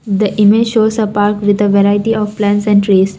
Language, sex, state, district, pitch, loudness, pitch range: English, female, Assam, Kamrup Metropolitan, 205 Hz, -12 LUFS, 205-215 Hz